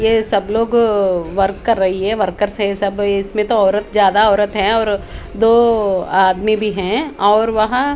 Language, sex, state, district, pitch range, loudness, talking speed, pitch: Hindi, female, Haryana, Charkhi Dadri, 195-220 Hz, -15 LUFS, 175 wpm, 205 Hz